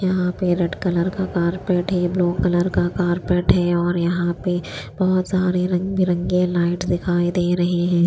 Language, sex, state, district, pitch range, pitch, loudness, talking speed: Hindi, female, Chandigarh, Chandigarh, 175-180 Hz, 180 Hz, -20 LUFS, 180 wpm